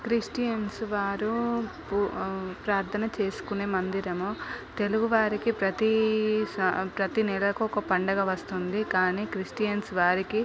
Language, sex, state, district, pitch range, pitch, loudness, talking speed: Telugu, female, Telangana, Nalgonda, 190-220 Hz, 205 Hz, -28 LUFS, 105 wpm